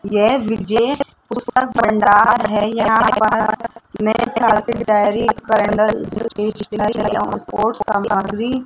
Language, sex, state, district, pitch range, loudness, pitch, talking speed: Hindi, male, Rajasthan, Jaipur, 210-230 Hz, -17 LUFS, 215 Hz, 125 wpm